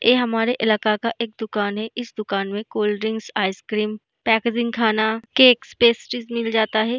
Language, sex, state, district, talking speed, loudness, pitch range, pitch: Hindi, female, Bihar, East Champaran, 170 wpm, -21 LUFS, 215-235 Hz, 220 Hz